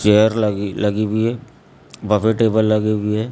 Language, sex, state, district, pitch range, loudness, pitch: Hindi, male, Maharashtra, Gondia, 105-110 Hz, -18 LUFS, 110 Hz